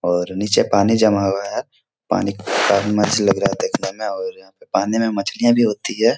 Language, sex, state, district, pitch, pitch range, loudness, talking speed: Hindi, male, Bihar, Jahanabad, 105 Hz, 100-115 Hz, -18 LUFS, 205 wpm